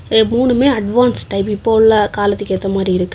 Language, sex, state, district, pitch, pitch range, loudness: Tamil, female, Tamil Nadu, Kanyakumari, 210 Hz, 195-230 Hz, -14 LUFS